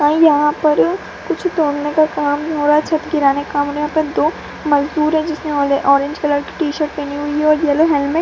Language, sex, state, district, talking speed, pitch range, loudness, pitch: Hindi, female, Bihar, Purnia, 195 wpm, 290-315 Hz, -16 LUFS, 300 Hz